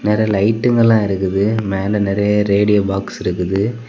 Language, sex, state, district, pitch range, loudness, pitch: Tamil, male, Tamil Nadu, Kanyakumari, 95-110 Hz, -16 LUFS, 105 Hz